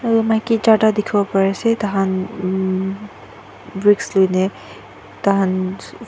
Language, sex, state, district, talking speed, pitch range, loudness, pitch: Nagamese, female, Nagaland, Dimapur, 100 wpm, 185-215 Hz, -18 LUFS, 195 Hz